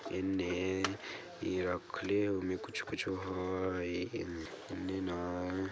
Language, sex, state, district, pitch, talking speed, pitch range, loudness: Bajjika, male, Bihar, Vaishali, 95 Hz, 85 wpm, 90-95 Hz, -37 LUFS